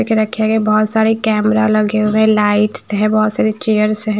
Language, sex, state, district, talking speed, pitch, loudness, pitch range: Hindi, female, Himachal Pradesh, Shimla, 200 wpm, 215 Hz, -14 LUFS, 215-220 Hz